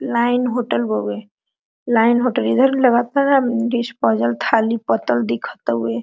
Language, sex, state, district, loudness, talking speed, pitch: Hindi, female, Jharkhand, Sahebganj, -18 LUFS, 130 wpm, 230 Hz